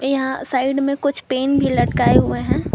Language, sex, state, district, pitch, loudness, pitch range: Hindi, female, Jharkhand, Garhwa, 270 Hz, -18 LUFS, 260-275 Hz